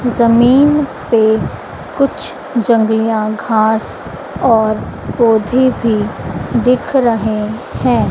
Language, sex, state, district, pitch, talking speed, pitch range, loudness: Hindi, female, Madhya Pradesh, Dhar, 230 Hz, 80 wpm, 220-250 Hz, -14 LUFS